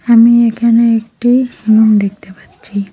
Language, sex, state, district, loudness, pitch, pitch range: Bengali, female, West Bengal, Cooch Behar, -11 LUFS, 225 Hz, 205-235 Hz